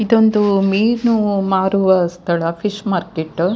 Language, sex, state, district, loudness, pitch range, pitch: Kannada, female, Karnataka, Dakshina Kannada, -16 LUFS, 175-215 Hz, 195 Hz